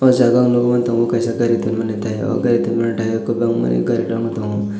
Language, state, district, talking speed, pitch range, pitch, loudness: Kokborok, Tripura, West Tripura, 215 wpm, 110-120 Hz, 115 Hz, -17 LUFS